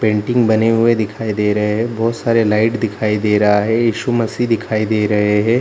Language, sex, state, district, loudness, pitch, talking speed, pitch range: Hindi, male, Bihar, Jahanabad, -16 LUFS, 110 Hz, 225 wpm, 105-115 Hz